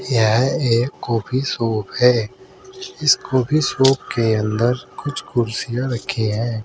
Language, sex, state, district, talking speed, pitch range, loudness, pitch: Hindi, male, Uttar Pradesh, Saharanpur, 125 wpm, 115-135 Hz, -19 LUFS, 125 Hz